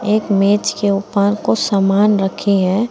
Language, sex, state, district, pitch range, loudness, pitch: Hindi, female, Uttar Pradesh, Saharanpur, 195-210 Hz, -15 LUFS, 200 Hz